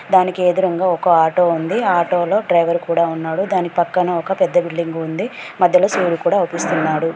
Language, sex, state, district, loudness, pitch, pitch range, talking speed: Telugu, female, Telangana, Mahabubabad, -17 LUFS, 175 Hz, 170-180 Hz, 175 wpm